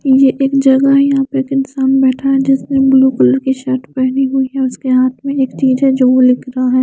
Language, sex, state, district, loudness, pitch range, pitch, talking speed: Hindi, female, Chandigarh, Chandigarh, -12 LUFS, 255-270 Hz, 265 Hz, 235 wpm